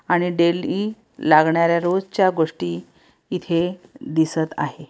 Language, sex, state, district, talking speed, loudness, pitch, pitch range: Marathi, female, Maharashtra, Pune, 100 wpm, -20 LUFS, 170 Hz, 160-180 Hz